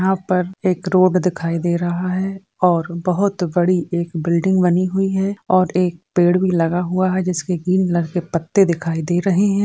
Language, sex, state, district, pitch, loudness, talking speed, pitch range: Hindi, male, Uttar Pradesh, Varanasi, 180 Hz, -18 LUFS, 190 wpm, 175-185 Hz